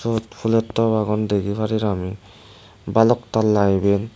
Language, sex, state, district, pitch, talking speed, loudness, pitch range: Chakma, male, Tripura, West Tripura, 110 Hz, 130 wpm, -20 LUFS, 100-115 Hz